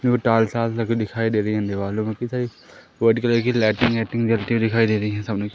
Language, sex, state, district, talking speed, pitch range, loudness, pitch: Hindi, female, Madhya Pradesh, Umaria, 215 wpm, 110-115 Hz, -21 LUFS, 115 Hz